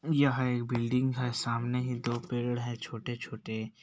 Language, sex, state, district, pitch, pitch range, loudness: Hindi, male, Bihar, Bhagalpur, 120 Hz, 120-125 Hz, -32 LUFS